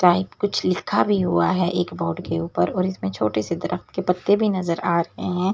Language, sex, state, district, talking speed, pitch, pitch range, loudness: Hindi, female, Delhi, New Delhi, 240 wpm, 180 Hz, 150-185 Hz, -22 LUFS